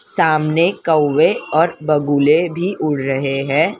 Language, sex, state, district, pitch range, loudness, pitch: Hindi, female, Maharashtra, Mumbai Suburban, 145-165 Hz, -16 LUFS, 155 Hz